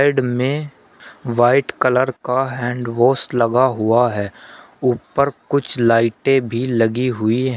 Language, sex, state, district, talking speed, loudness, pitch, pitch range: Hindi, male, Uttar Pradesh, Shamli, 135 wpm, -18 LUFS, 125 Hz, 115-130 Hz